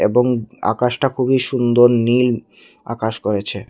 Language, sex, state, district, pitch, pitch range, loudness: Bengali, male, Tripura, Unakoti, 120 Hz, 115-125 Hz, -17 LUFS